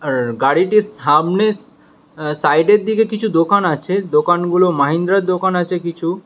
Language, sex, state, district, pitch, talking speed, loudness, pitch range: Bengali, male, West Bengal, Alipurduar, 175 Hz, 145 wpm, -15 LUFS, 150-195 Hz